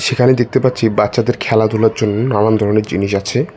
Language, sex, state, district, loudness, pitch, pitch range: Bengali, male, West Bengal, Cooch Behar, -14 LUFS, 110 Hz, 105-125 Hz